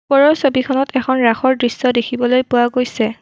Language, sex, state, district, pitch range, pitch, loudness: Assamese, female, Assam, Kamrup Metropolitan, 245-265 Hz, 255 Hz, -15 LUFS